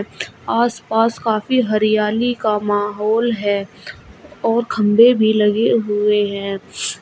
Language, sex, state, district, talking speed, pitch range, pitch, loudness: Hindi, female, Uttar Pradesh, Shamli, 105 wpm, 210-230 Hz, 215 Hz, -17 LUFS